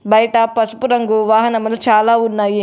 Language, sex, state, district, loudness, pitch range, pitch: Telugu, female, Telangana, Adilabad, -14 LUFS, 220-230 Hz, 225 Hz